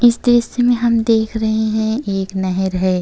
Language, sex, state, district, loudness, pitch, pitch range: Hindi, female, Uttar Pradesh, Jyotiba Phule Nagar, -16 LUFS, 220 Hz, 190-235 Hz